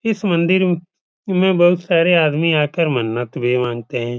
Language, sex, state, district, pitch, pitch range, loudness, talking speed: Hindi, male, Uttar Pradesh, Etah, 165 Hz, 125-180 Hz, -17 LUFS, 155 wpm